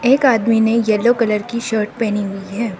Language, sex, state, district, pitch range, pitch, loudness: Hindi, female, Arunachal Pradesh, Lower Dibang Valley, 210-235 Hz, 225 Hz, -17 LUFS